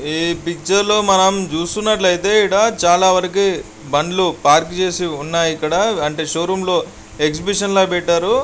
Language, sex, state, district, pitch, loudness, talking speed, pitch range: Telugu, male, Andhra Pradesh, Guntur, 175 Hz, -16 LUFS, 135 wpm, 160-195 Hz